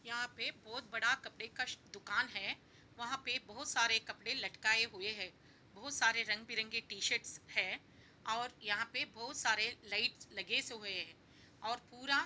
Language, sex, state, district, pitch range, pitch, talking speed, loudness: Hindi, female, Bihar, Jahanabad, 220-245 Hz, 230 Hz, 175 wpm, -38 LUFS